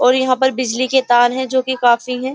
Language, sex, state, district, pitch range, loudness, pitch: Hindi, female, Uttar Pradesh, Jyotiba Phule Nagar, 250-260 Hz, -15 LUFS, 255 Hz